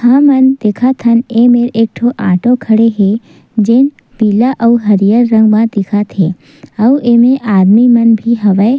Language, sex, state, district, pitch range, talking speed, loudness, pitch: Chhattisgarhi, female, Chhattisgarh, Sukma, 210-240 Hz, 155 wpm, -10 LUFS, 230 Hz